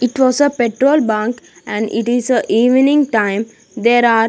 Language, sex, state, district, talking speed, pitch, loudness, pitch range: English, female, Punjab, Kapurthala, 195 wpm, 240 Hz, -14 LUFS, 225-260 Hz